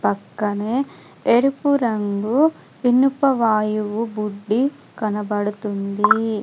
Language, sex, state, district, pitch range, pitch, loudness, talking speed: Telugu, female, Telangana, Adilabad, 210-255 Hz, 215 Hz, -20 LUFS, 65 wpm